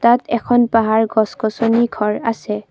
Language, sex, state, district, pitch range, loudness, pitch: Assamese, female, Assam, Kamrup Metropolitan, 215-235 Hz, -17 LUFS, 225 Hz